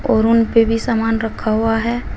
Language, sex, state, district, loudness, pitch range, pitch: Hindi, female, Uttar Pradesh, Shamli, -16 LUFS, 225-230 Hz, 225 Hz